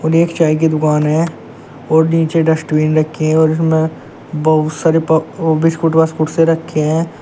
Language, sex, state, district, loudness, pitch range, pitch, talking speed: Hindi, male, Uttar Pradesh, Shamli, -14 LUFS, 155-165 Hz, 160 Hz, 175 wpm